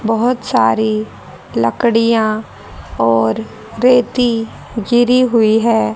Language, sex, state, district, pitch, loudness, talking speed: Hindi, female, Haryana, Rohtak, 220 Hz, -14 LUFS, 80 wpm